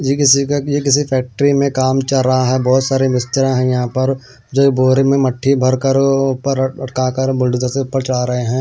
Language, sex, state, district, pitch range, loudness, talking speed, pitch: Hindi, male, Punjab, Pathankot, 130-135 Hz, -15 LUFS, 195 wpm, 130 Hz